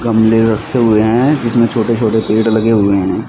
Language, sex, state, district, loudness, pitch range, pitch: Hindi, male, Haryana, Rohtak, -12 LUFS, 110-115 Hz, 115 Hz